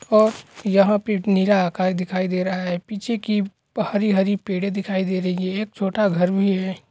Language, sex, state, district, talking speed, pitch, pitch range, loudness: Hindi, male, Bihar, East Champaran, 190 wpm, 195 Hz, 185-205 Hz, -21 LUFS